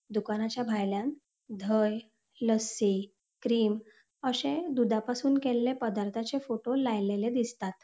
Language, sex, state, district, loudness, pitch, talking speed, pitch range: Konkani, female, Goa, North and South Goa, -31 LUFS, 225 Hz, 90 wpm, 215-250 Hz